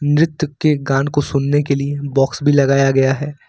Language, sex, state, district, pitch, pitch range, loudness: Hindi, male, Jharkhand, Ranchi, 140 Hz, 135-145 Hz, -16 LUFS